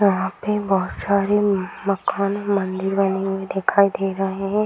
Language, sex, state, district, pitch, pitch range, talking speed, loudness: Hindi, female, Bihar, Purnia, 195 Hz, 195-200 Hz, 155 wpm, -21 LUFS